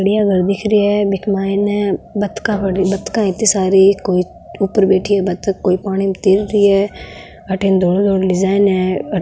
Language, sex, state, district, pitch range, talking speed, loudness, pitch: Marwari, female, Rajasthan, Nagaur, 190-205 Hz, 150 wpm, -15 LUFS, 195 Hz